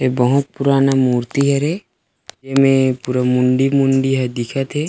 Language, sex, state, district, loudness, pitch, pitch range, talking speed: Chhattisgarhi, male, Chhattisgarh, Rajnandgaon, -16 LUFS, 135 Hz, 125-140 Hz, 135 wpm